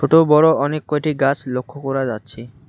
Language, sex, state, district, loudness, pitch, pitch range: Bengali, male, West Bengal, Alipurduar, -18 LUFS, 140 Hz, 130-150 Hz